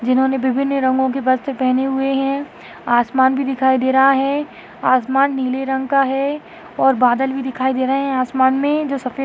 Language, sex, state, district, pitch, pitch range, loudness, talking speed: Hindi, female, Maharashtra, Aurangabad, 265 Hz, 260-275 Hz, -17 LUFS, 195 wpm